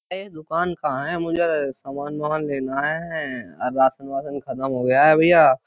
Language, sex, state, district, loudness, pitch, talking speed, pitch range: Hindi, male, Uttar Pradesh, Jyotiba Phule Nagar, -21 LUFS, 150 Hz, 170 wpm, 135-165 Hz